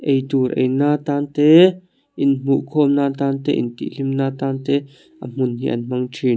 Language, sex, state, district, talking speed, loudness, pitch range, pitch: Mizo, male, Mizoram, Aizawl, 205 wpm, -18 LUFS, 130-145 Hz, 135 Hz